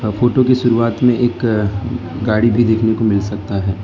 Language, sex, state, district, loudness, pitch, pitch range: Hindi, male, Gujarat, Valsad, -15 LUFS, 110 Hz, 105-120 Hz